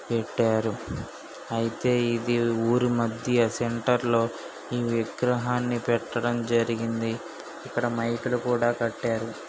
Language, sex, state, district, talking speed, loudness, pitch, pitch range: Telugu, male, Andhra Pradesh, Srikakulam, 100 wpm, -26 LUFS, 120 Hz, 115-120 Hz